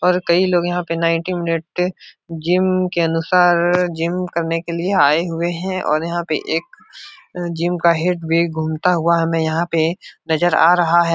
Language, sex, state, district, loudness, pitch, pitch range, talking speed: Hindi, male, Uttar Pradesh, Etah, -18 LUFS, 170 Hz, 165-180 Hz, 185 wpm